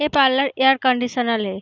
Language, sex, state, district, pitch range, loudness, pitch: Hindi, female, Bihar, Sitamarhi, 245-270 Hz, -18 LUFS, 260 Hz